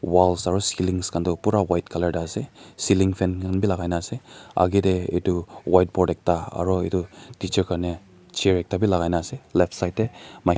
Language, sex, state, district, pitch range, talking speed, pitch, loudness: Nagamese, male, Nagaland, Dimapur, 90-95 Hz, 195 wpm, 90 Hz, -23 LUFS